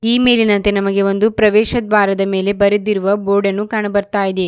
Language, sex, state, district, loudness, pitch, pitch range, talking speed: Kannada, female, Karnataka, Bidar, -14 LUFS, 205 Hz, 200-215 Hz, 175 wpm